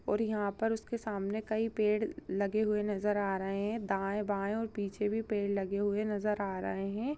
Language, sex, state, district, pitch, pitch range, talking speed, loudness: Hindi, female, Chhattisgarh, Bastar, 210 Hz, 200-215 Hz, 210 wpm, -34 LUFS